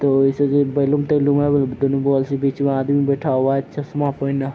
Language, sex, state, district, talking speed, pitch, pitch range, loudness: Hindi, male, Bihar, Araria, 235 wpm, 140 Hz, 135-145 Hz, -19 LUFS